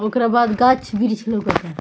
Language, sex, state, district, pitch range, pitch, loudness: Bhojpuri, female, Bihar, Muzaffarpur, 210-240 Hz, 220 Hz, -18 LUFS